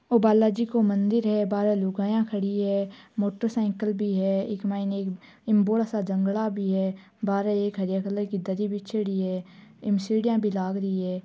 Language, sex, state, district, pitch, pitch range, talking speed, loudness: Marwari, female, Rajasthan, Churu, 205 Hz, 195-215 Hz, 190 wpm, -26 LUFS